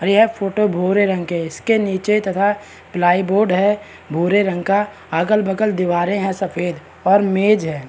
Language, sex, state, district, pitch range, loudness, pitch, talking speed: Hindi, male, Bihar, Araria, 175-205 Hz, -18 LUFS, 195 Hz, 175 wpm